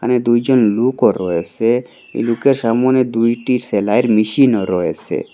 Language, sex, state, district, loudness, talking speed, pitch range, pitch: Bengali, male, Assam, Hailakandi, -15 LUFS, 110 wpm, 110-125 Hz, 120 Hz